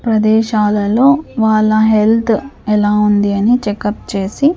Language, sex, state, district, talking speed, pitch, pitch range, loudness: Telugu, female, Andhra Pradesh, Sri Satya Sai, 120 wpm, 215 Hz, 205-230 Hz, -13 LUFS